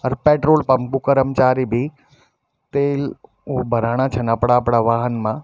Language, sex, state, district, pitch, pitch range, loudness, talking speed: Garhwali, male, Uttarakhand, Tehri Garhwal, 130 Hz, 120-140 Hz, -18 LUFS, 155 wpm